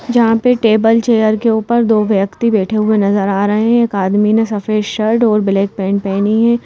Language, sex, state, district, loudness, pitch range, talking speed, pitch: Hindi, female, Madhya Pradesh, Bhopal, -13 LUFS, 200-230 Hz, 215 wpm, 215 Hz